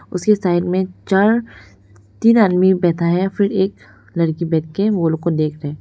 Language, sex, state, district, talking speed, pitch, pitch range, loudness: Hindi, female, Arunachal Pradesh, Lower Dibang Valley, 185 wpm, 180 Hz, 160-195 Hz, -17 LUFS